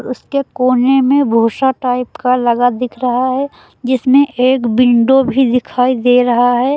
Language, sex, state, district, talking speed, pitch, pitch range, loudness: Hindi, female, Uttar Pradesh, Lucknow, 160 wpm, 250 Hz, 245-265 Hz, -13 LUFS